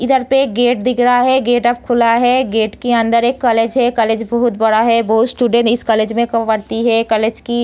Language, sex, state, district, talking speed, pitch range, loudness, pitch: Hindi, female, Bihar, Darbhanga, 245 wpm, 225-245 Hz, -14 LUFS, 235 Hz